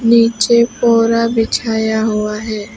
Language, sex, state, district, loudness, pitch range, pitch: Hindi, female, West Bengal, Alipurduar, -14 LUFS, 220-230 Hz, 230 Hz